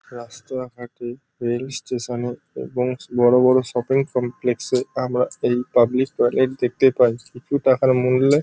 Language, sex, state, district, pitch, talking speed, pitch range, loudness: Bengali, male, West Bengal, North 24 Parganas, 125 Hz, 150 wpm, 120-130 Hz, -20 LUFS